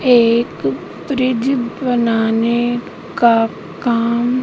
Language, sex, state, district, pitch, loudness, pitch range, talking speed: Hindi, female, Madhya Pradesh, Katni, 235 Hz, -16 LUFS, 230-250 Hz, 70 wpm